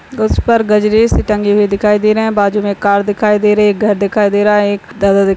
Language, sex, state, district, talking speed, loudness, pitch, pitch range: Hindi, female, Maharashtra, Nagpur, 255 wpm, -12 LUFS, 210 Hz, 200-210 Hz